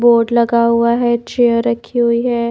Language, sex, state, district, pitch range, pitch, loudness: Hindi, female, Haryana, Rohtak, 235-240 Hz, 235 Hz, -14 LUFS